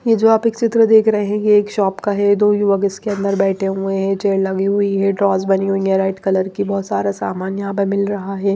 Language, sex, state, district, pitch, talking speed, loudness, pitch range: Hindi, female, Maharashtra, Mumbai Suburban, 200 Hz, 275 wpm, -17 LUFS, 195-205 Hz